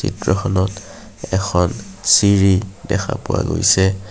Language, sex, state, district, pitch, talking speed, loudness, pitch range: Assamese, male, Assam, Kamrup Metropolitan, 95 Hz, 90 wpm, -17 LUFS, 95-100 Hz